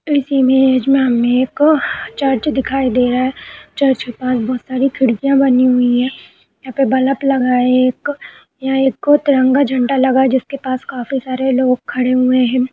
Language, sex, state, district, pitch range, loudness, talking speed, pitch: Hindi, female, Uttar Pradesh, Budaun, 255-270 Hz, -15 LUFS, 180 wpm, 260 Hz